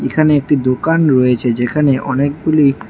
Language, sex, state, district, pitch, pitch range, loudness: Bengali, female, West Bengal, Alipurduar, 140 Hz, 130-150 Hz, -14 LUFS